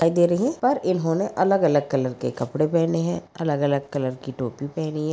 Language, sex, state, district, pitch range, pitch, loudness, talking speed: Hindi, female, Maharashtra, Pune, 140-175 Hz, 160 Hz, -23 LUFS, 235 wpm